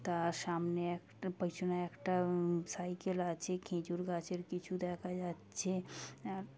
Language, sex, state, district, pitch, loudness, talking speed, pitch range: Bengali, female, West Bengal, Kolkata, 180 Hz, -39 LUFS, 145 wpm, 175-180 Hz